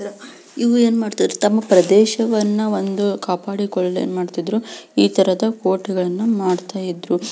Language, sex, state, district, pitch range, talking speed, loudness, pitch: Kannada, female, Karnataka, Belgaum, 185-220 Hz, 115 wpm, -18 LUFS, 205 Hz